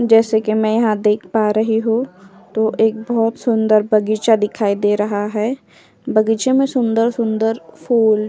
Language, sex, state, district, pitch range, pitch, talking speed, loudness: Hindi, female, Uttar Pradesh, Jyotiba Phule Nagar, 210-225 Hz, 220 Hz, 175 wpm, -17 LUFS